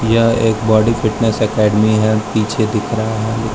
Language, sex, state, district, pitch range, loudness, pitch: Hindi, male, Arunachal Pradesh, Lower Dibang Valley, 110-115 Hz, -15 LUFS, 110 Hz